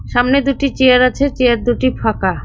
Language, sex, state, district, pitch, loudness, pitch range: Bengali, female, West Bengal, Cooch Behar, 255 Hz, -14 LUFS, 245-275 Hz